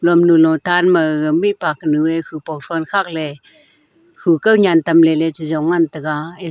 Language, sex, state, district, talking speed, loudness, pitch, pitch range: Wancho, female, Arunachal Pradesh, Longding, 185 wpm, -15 LUFS, 165 Hz, 155-175 Hz